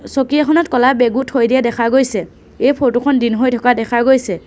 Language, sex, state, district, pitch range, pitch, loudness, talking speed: Assamese, female, Assam, Sonitpur, 235-265 Hz, 255 Hz, -14 LUFS, 215 wpm